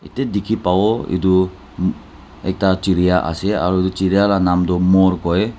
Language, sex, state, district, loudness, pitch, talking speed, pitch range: Nagamese, male, Nagaland, Dimapur, -17 LUFS, 95 Hz, 170 wpm, 90-100 Hz